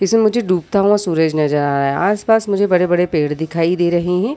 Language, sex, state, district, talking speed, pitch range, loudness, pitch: Hindi, female, Uttar Pradesh, Varanasi, 235 wpm, 160-205 Hz, -16 LUFS, 180 Hz